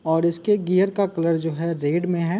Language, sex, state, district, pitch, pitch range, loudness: Hindi, male, Uttar Pradesh, Muzaffarnagar, 170 Hz, 165-190 Hz, -22 LUFS